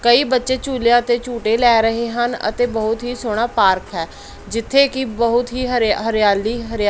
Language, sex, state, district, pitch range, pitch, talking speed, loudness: Punjabi, female, Punjab, Pathankot, 220-245 Hz, 235 Hz, 185 wpm, -17 LUFS